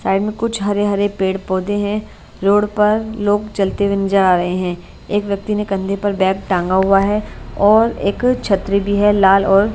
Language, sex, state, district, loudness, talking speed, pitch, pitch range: Hindi, female, Bihar, Katihar, -16 LUFS, 195 wpm, 200 Hz, 195-210 Hz